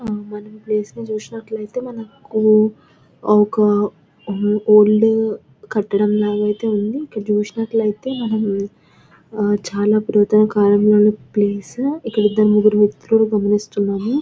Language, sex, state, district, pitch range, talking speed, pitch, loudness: Telugu, female, Telangana, Nalgonda, 205-220 Hz, 100 wpm, 210 Hz, -17 LUFS